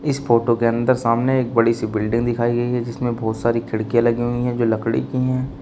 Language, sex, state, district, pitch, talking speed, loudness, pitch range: Hindi, male, Uttar Pradesh, Shamli, 120 Hz, 245 wpm, -20 LUFS, 115-125 Hz